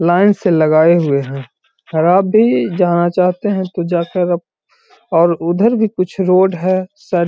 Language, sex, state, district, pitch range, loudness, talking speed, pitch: Hindi, male, Bihar, Gaya, 170-190 Hz, -14 LUFS, 180 wpm, 180 Hz